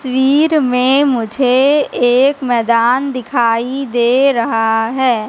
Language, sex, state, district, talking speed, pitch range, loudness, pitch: Hindi, female, Madhya Pradesh, Katni, 100 wpm, 235-270 Hz, -13 LUFS, 250 Hz